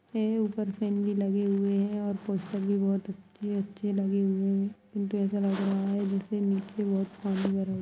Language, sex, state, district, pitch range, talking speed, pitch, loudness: Hindi, female, Bihar, Sitamarhi, 195-205 Hz, 200 wpm, 200 Hz, -30 LUFS